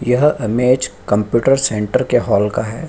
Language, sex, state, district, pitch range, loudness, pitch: Hindi, male, Bihar, Lakhisarai, 105-130 Hz, -16 LUFS, 120 Hz